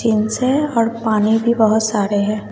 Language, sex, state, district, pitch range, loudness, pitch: Hindi, female, Bihar, West Champaran, 215-230 Hz, -16 LUFS, 220 Hz